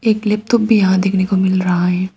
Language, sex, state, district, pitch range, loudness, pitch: Hindi, female, Arunachal Pradesh, Papum Pare, 185-215 Hz, -15 LUFS, 190 Hz